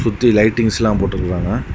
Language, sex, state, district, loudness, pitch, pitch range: Tamil, male, Tamil Nadu, Kanyakumari, -16 LUFS, 110 Hz, 100-115 Hz